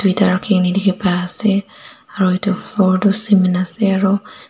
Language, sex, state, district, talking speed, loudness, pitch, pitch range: Nagamese, female, Nagaland, Dimapur, 160 wpm, -16 LUFS, 195 Hz, 185-205 Hz